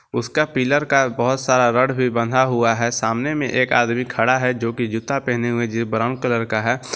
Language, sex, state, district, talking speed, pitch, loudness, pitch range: Hindi, male, Jharkhand, Garhwa, 225 wpm, 120 Hz, -19 LUFS, 115-130 Hz